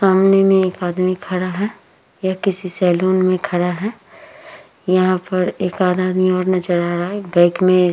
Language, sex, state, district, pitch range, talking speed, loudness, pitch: Hindi, female, Uttar Pradesh, Hamirpur, 180-195 Hz, 180 wpm, -17 LUFS, 185 Hz